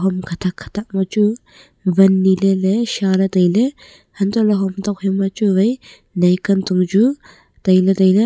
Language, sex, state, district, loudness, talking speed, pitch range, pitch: Wancho, female, Arunachal Pradesh, Longding, -16 LUFS, 160 wpm, 190-210 Hz, 195 Hz